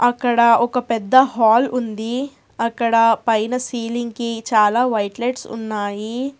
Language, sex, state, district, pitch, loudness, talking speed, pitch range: Telugu, female, Telangana, Hyderabad, 235 Hz, -18 LUFS, 120 wpm, 225-245 Hz